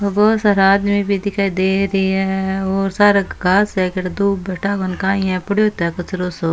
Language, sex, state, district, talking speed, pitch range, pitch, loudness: Rajasthani, female, Rajasthan, Churu, 155 wpm, 185-200 Hz, 195 Hz, -17 LUFS